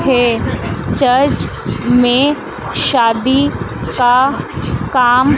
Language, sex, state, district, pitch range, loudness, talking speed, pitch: Hindi, female, Madhya Pradesh, Dhar, 245-270 Hz, -14 LUFS, 65 wpm, 255 Hz